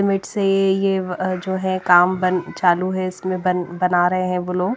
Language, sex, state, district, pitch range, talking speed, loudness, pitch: Hindi, female, Maharashtra, Gondia, 180-190 Hz, 215 wpm, -19 LUFS, 185 Hz